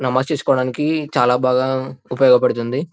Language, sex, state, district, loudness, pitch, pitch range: Telugu, male, Telangana, Karimnagar, -17 LUFS, 130 Hz, 130-150 Hz